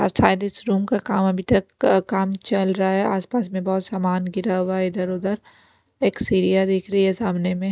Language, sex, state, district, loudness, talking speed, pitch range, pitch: Hindi, female, Punjab, Pathankot, -21 LUFS, 200 wpm, 185-200 Hz, 190 Hz